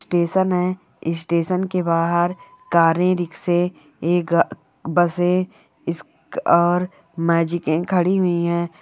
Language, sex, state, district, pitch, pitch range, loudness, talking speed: Hindi, female, Bihar, Bhagalpur, 175 Hz, 170-180 Hz, -20 LUFS, 100 wpm